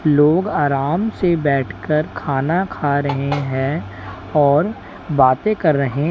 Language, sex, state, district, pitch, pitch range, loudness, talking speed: Hindi, male, Uttar Pradesh, Lalitpur, 145 Hz, 135-160 Hz, -18 LUFS, 130 wpm